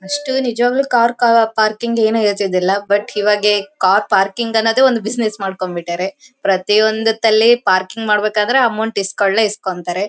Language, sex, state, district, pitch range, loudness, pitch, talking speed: Kannada, female, Karnataka, Bellary, 200-230 Hz, -15 LUFS, 215 Hz, 130 wpm